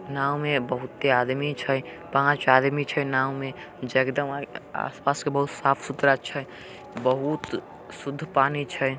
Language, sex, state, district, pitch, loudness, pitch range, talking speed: Angika, male, Bihar, Samastipur, 140 Hz, -25 LUFS, 130-145 Hz, 160 wpm